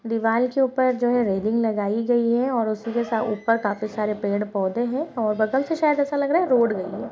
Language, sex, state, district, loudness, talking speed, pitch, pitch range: Hindi, female, Chhattisgarh, Kabirdham, -22 LUFS, 235 wpm, 230 Hz, 215-255 Hz